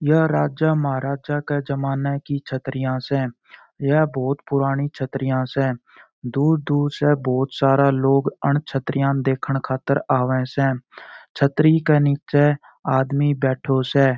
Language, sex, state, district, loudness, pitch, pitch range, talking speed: Marwari, male, Rajasthan, Churu, -21 LUFS, 140 Hz, 130-145 Hz, 130 wpm